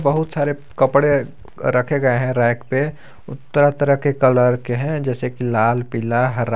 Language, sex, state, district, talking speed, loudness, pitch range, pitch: Hindi, male, Jharkhand, Garhwa, 175 wpm, -18 LUFS, 125-145 Hz, 130 Hz